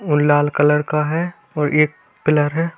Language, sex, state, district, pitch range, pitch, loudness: Hindi, male, Bihar, Bhagalpur, 150-155 Hz, 150 Hz, -18 LUFS